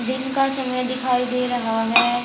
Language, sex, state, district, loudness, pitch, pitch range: Hindi, female, Haryana, Charkhi Dadri, -21 LUFS, 250 Hz, 240-255 Hz